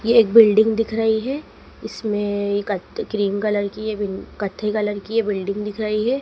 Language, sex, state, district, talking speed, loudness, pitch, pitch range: Hindi, female, Madhya Pradesh, Dhar, 200 wpm, -20 LUFS, 215 Hz, 205-220 Hz